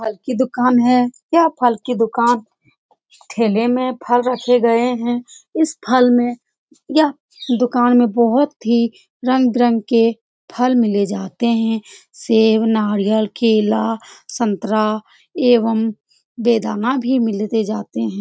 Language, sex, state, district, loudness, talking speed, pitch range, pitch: Hindi, female, Bihar, Lakhisarai, -17 LUFS, 130 wpm, 220-250 Hz, 235 Hz